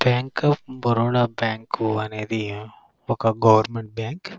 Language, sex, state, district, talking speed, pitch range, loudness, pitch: Telugu, male, Andhra Pradesh, Krishna, 125 wpm, 110-125 Hz, -22 LUFS, 115 Hz